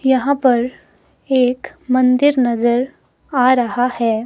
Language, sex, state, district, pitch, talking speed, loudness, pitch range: Hindi, male, Himachal Pradesh, Shimla, 255 Hz, 115 wpm, -16 LUFS, 245-265 Hz